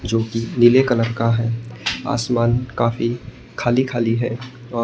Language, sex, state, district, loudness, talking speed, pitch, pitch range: Hindi, male, Maharashtra, Gondia, -19 LUFS, 150 wpm, 120 Hz, 115-120 Hz